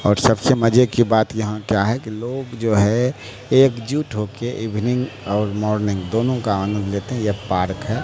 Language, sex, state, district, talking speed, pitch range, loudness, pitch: Hindi, male, Bihar, Katihar, 200 wpm, 105-125 Hz, -20 LUFS, 110 Hz